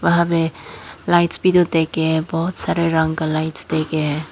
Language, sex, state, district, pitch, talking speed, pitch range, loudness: Hindi, female, Tripura, Dhalai, 160 Hz, 180 wpm, 160-170 Hz, -18 LUFS